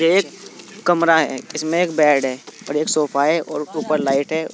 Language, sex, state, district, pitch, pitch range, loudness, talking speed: Hindi, male, Uttar Pradesh, Saharanpur, 155 Hz, 150-165 Hz, -19 LUFS, 200 wpm